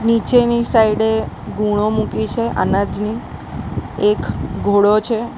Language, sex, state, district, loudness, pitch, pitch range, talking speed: Gujarati, female, Gujarat, Valsad, -17 LUFS, 220 Hz, 210-230 Hz, 100 wpm